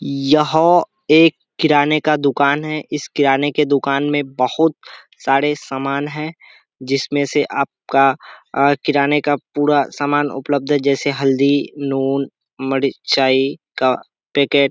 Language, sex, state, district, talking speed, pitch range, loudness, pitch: Hindi, male, Bihar, Kishanganj, 130 wpm, 135-150 Hz, -17 LUFS, 140 Hz